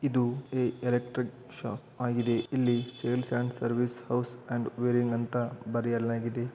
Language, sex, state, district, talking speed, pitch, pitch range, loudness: Kannada, male, Karnataka, Raichur, 120 wpm, 120 Hz, 120-125 Hz, -31 LUFS